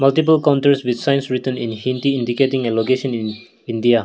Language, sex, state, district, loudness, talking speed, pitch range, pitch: English, male, Nagaland, Kohima, -18 LUFS, 175 wpm, 120-140 Hz, 130 Hz